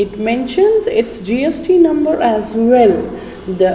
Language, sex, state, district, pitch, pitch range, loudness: English, female, Maharashtra, Mumbai Suburban, 240 Hz, 220-320 Hz, -13 LUFS